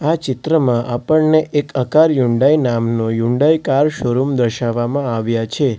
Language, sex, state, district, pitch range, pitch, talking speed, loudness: Gujarati, male, Gujarat, Valsad, 120-150 Hz, 130 Hz, 135 wpm, -16 LUFS